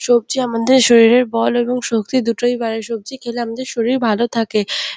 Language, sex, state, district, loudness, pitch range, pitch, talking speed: Bengali, female, West Bengal, Kolkata, -16 LUFS, 230-250 Hz, 235 Hz, 170 wpm